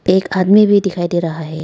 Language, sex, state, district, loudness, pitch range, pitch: Hindi, female, Arunachal Pradesh, Lower Dibang Valley, -14 LUFS, 170-195 Hz, 185 Hz